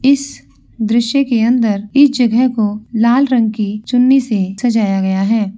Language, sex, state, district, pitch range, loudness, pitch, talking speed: Hindi, female, Bihar, Jahanabad, 210-250 Hz, -14 LUFS, 230 Hz, 160 wpm